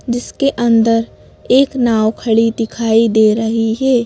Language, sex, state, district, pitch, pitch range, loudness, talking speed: Hindi, female, Madhya Pradesh, Bhopal, 230 Hz, 225-245 Hz, -14 LUFS, 135 wpm